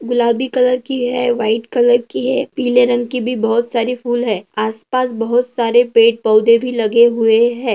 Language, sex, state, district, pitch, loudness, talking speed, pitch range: Hindi, female, Maharashtra, Dhule, 240 Hz, -15 LUFS, 195 wpm, 230-245 Hz